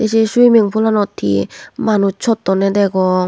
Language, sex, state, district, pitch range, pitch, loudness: Chakma, female, Tripura, West Tripura, 190-220 Hz, 205 Hz, -14 LUFS